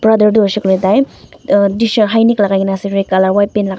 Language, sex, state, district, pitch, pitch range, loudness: Nagamese, female, Nagaland, Dimapur, 205 Hz, 195-220 Hz, -12 LUFS